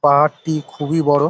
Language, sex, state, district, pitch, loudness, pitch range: Bengali, male, West Bengal, Paschim Medinipur, 150 Hz, -18 LUFS, 145-155 Hz